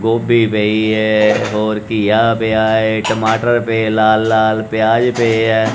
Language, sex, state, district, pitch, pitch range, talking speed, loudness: Punjabi, male, Punjab, Kapurthala, 110 Hz, 110-115 Hz, 135 wpm, -14 LUFS